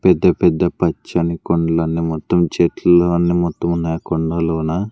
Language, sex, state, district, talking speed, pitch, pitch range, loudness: Telugu, male, Andhra Pradesh, Sri Satya Sai, 135 wpm, 85 Hz, 80-85 Hz, -17 LUFS